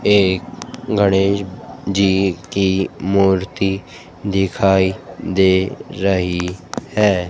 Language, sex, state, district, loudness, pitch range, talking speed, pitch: Hindi, female, Madhya Pradesh, Dhar, -17 LUFS, 95-100 Hz, 75 wpm, 95 Hz